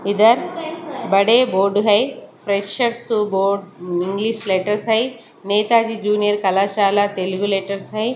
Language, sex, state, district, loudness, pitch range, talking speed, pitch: Hindi, female, Maharashtra, Mumbai Suburban, -18 LUFS, 195-230 Hz, 115 wpm, 205 Hz